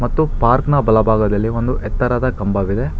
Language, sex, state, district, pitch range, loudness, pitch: Kannada, male, Karnataka, Bangalore, 105-125 Hz, -17 LUFS, 115 Hz